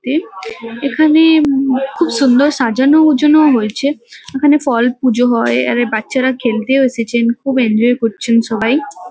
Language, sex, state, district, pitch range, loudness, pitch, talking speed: Bengali, female, West Bengal, Kolkata, 230-280 Hz, -13 LUFS, 250 Hz, 140 wpm